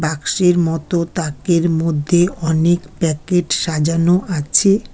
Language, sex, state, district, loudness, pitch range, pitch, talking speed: Bengali, female, West Bengal, Alipurduar, -16 LUFS, 160-175 Hz, 170 Hz, 95 wpm